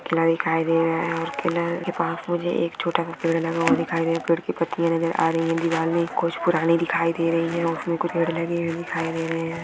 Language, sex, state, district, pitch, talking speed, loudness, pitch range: Hindi, female, Maharashtra, Sindhudurg, 165 Hz, 250 wpm, -23 LUFS, 165-170 Hz